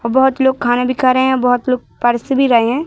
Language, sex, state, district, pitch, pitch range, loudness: Hindi, female, Madhya Pradesh, Katni, 255 Hz, 240-265 Hz, -14 LUFS